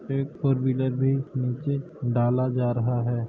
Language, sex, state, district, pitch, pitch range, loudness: Hindi, male, Uttar Pradesh, Hamirpur, 130 Hz, 120-135 Hz, -26 LUFS